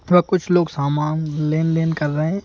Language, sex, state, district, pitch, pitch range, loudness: Hindi, male, Madhya Pradesh, Bhopal, 160 Hz, 150-175 Hz, -19 LUFS